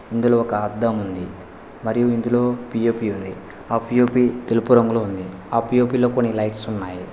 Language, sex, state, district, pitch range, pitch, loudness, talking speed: Telugu, male, Telangana, Hyderabad, 105-120 Hz, 115 Hz, -20 LUFS, 160 wpm